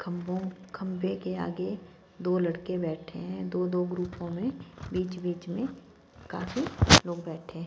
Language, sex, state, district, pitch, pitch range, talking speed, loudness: Hindi, female, Punjab, Fazilka, 180 Hz, 170-185 Hz, 150 wpm, -29 LUFS